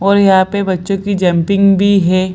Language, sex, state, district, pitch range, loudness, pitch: Hindi, female, Bihar, Lakhisarai, 185-200 Hz, -12 LUFS, 195 Hz